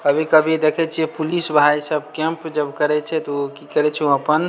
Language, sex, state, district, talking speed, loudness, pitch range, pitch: Maithili, male, Bihar, Samastipur, 225 wpm, -19 LUFS, 150-160 Hz, 155 Hz